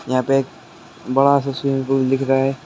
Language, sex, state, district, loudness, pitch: Hindi, male, West Bengal, Alipurduar, -18 LUFS, 135 Hz